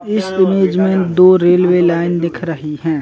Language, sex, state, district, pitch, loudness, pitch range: Hindi, male, Uttar Pradesh, Jalaun, 180 Hz, -13 LUFS, 170-190 Hz